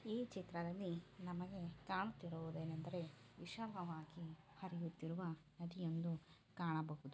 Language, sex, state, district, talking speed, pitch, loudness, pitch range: Kannada, female, Karnataka, Chamarajanagar, 85 wpm, 170 Hz, -48 LUFS, 160-180 Hz